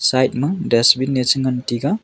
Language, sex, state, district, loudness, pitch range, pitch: Wancho, male, Arunachal Pradesh, Longding, -17 LUFS, 125-135 Hz, 130 Hz